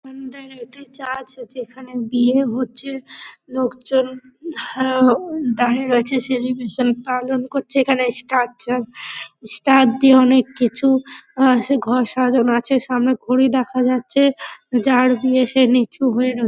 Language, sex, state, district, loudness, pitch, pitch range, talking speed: Bengali, female, West Bengal, Dakshin Dinajpur, -18 LUFS, 255 Hz, 245-265 Hz, 140 wpm